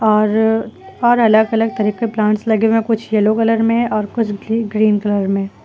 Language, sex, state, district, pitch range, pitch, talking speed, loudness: Hindi, female, Uttar Pradesh, Lucknow, 210-225 Hz, 220 Hz, 225 wpm, -15 LUFS